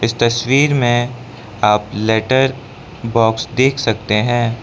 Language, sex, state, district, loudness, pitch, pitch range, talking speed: Hindi, male, Arunachal Pradesh, Lower Dibang Valley, -16 LUFS, 120 Hz, 110-130 Hz, 115 wpm